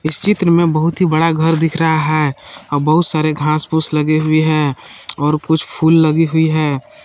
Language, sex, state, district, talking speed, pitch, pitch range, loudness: Hindi, male, Jharkhand, Palamu, 205 wpm, 155 Hz, 155-165 Hz, -14 LUFS